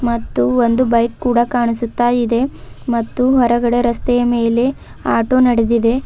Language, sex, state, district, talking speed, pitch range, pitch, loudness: Kannada, female, Karnataka, Bidar, 120 wpm, 235-245 Hz, 240 Hz, -15 LUFS